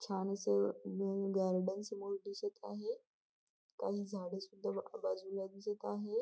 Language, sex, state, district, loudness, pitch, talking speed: Marathi, female, Maharashtra, Nagpur, -40 LUFS, 195 Hz, 135 wpm